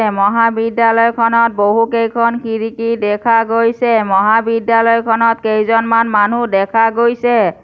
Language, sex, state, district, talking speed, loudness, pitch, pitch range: Assamese, female, Assam, Kamrup Metropolitan, 85 wpm, -13 LUFS, 230 Hz, 220-230 Hz